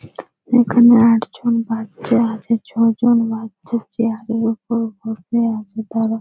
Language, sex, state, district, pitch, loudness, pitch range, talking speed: Bengali, female, West Bengal, Purulia, 230 Hz, -17 LUFS, 225-235 Hz, 135 wpm